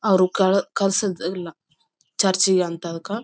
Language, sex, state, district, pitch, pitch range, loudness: Kannada, female, Karnataka, Bellary, 190 Hz, 180-195 Hz, -21 LUFS